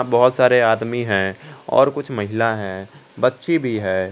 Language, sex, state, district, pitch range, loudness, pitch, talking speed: Hindi, male, Jharkhand, Garhwa, 95-125 Hz, -19 LUFS, 115 Hz, 160 wpm